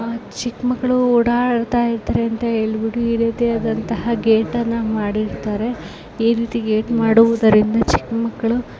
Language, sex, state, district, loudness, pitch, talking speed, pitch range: Kannada, female, Karnataka, Bellary, -18 LUFS, 230 Hz, 95 wpm, 225-235 Hz